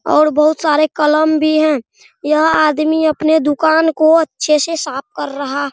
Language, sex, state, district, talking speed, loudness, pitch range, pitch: Hindi, male, Bihar, Araria, 190 wpm, -14 LUFS, 300-315 Hz, 310 Hz